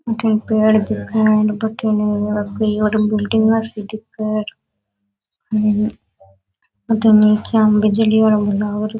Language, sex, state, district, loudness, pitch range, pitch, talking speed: Rajasthani, female, Rajasthan, Nagaur, -16 LUFS, 210-220 Hz, 215 Hz, 80 wpm